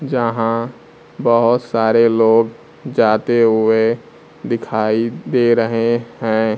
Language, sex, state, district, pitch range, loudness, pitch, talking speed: Hindi, male, Bihar, Kaimur, 110-120 Hz, -16 LUFS, 115 Hz, 90 wpm